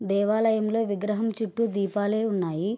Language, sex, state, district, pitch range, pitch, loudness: Telugu, female, Andhra Pradesh, Srikakulam, 200-220 Hz, 210 Hz, -26 LUFS